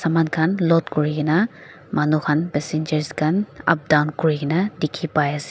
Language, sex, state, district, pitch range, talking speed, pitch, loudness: Nagamese, female, Nagaland, Dimapur, 150-165 Hz, 150 wpm, 155 Hz, -21 LUFS